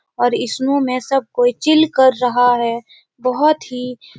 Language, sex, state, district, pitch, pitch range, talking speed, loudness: Hindi, female, Uttar Pradesh, Etah, 255 Hz, 245-300 Hz, 170 wpm, -16 LUFS